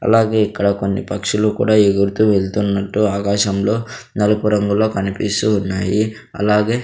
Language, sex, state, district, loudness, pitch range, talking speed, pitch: Telugu, male, Andhra Pradesh, Sri Satya Sai, -17 LUFS, 100-105 Hz, 105 wpm, 105 Hz